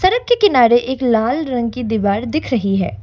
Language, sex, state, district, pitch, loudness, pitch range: Hindi, female, Assam, Kamrup Metropolitan, 245 Hz, -16 LUFS, 220-295 Hz